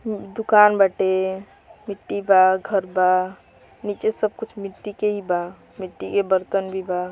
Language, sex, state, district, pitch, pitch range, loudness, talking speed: Bhojpuri, female, Uttar Pradesh, Gorakhpur, 195 Hz, 185-205 Hz, -21 LUFS, 170 wpm